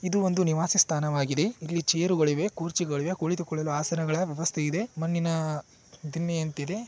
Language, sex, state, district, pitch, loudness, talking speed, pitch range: Kannada, male, Karnataka, Shimoga, 165 Hz, -27 LUFS, 130 wpm, 155-180 Hz